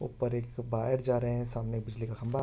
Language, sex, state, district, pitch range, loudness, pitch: Hindi, male, Uttarakhand, Tehri Garhwal, 115-125 Hz, -33 LUFS, 120 Hz